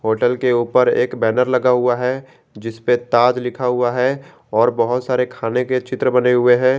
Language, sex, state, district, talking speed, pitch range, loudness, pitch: Hindi, male, Jharkhand, Garhwa, 205 wpm, 120-125 Hz, -17 LUFS, 125 Hz